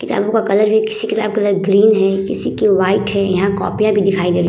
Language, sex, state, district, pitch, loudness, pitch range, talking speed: Hindi, female, Bihar, Vaishali, 200 Hz, -15 LUFS, 195-215 Hz, 280 wpm